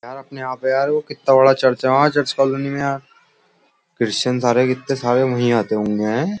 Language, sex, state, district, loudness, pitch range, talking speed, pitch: Hindi, male, Uttar Pradesh, Jyotiba Phule Nagar, -18 LUFS, 125-135 Hz, 205 wpm, 130 Hz